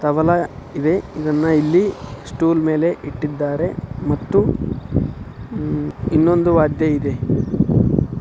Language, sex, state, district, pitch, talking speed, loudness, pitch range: Kannada, male, Karnataka, Dharwad, 155 Hz, 80 wpm, -19 LUFS, 140-165 Hz